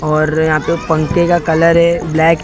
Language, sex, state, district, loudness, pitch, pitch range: Hindi, male, Maharashtra, Mumbai Suburban, -13 LUFS, 160 Hz, 155-170 Hz